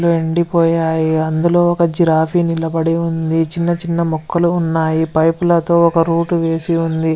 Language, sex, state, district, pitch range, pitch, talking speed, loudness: Telugu, male, Andhra Pradesh, Visakhapatnam, 160-170 Hz, 165 Hz, 150 wpm, -15 LUFS